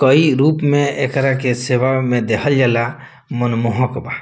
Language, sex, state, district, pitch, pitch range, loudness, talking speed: Bhojpuri, male, Bihar, Muzaffarpur, 130 Hz, 120-140 Hz, -16 LUFS, 155 wpm